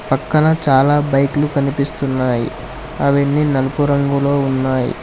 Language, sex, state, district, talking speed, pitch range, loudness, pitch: Telugu, male, Telangana, Hyderabad, 95 wpm, 135-145 Hz, -16 LUFS, 140 Hz